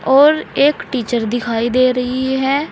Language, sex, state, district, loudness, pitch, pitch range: Hindi, female, Uttar Pradesh, Saharanpur, -16 LUFS, 255 Hz, 240-275 Hz